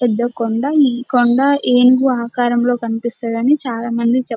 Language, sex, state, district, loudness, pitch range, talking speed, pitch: Telugu, female, Telangana, Nalgonda, -15 LUFS, 235-255 Hz, 110 wpm, 245 Hz